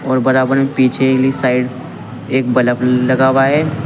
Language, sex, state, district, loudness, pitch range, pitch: Hindi, male, Uttar Pradesh, Saharanpur, -14 LUFS, 125-135 Hz, 130 Hz